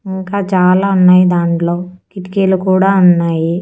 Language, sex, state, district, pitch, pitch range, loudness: Telugu, female, Andhra Pradesh, Annamaya, 185 Hz, 175-190 Hz, -12 LUFS